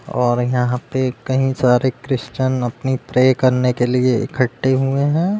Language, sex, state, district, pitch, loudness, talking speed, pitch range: Hindi, male, Uttar Pradesh, Deoria, 130 Hz, -18 LUFS, 155 wpm, 125-130 Hz